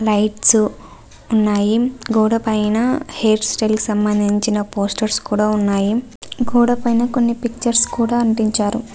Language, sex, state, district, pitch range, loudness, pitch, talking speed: Telugu, female, Andhra Pradesh, Visakhapatnam, 210-235 Hz, -17 LUFS, 220 Hz, 115 wpm